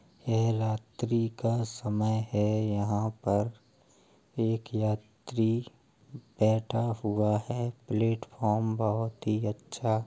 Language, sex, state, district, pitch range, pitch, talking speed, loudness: Hindi, male, Uttar Pradesh, Hamirpur, 105-115 Hz, 110 Hz, 105 wpm, -30 LUFS